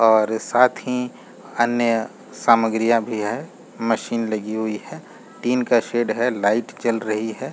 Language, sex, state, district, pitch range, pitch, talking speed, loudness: Hindi, male, Jharkhand, Jamtara, 110-120 Hz, 115 Hz, 150 wpm, -21 LUFS